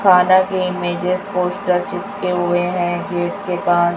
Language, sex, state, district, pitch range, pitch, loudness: Hindi, female, Chhattisgarh, Raipur, 175-185 Hz, 180 Hz, -18 LUFS